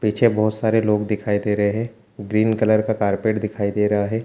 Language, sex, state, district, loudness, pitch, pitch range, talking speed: Hindi, male, Chhattisgarh, Bilaspur, -20 LUFS, 105 Hz, 105-110 Hz, 225 wpm